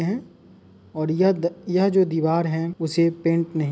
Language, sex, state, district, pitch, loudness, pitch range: Hindi, male, Uttar Pradesh, Muzaffarnagar, 170 Hz, -22 LUFS, 160-180 Hz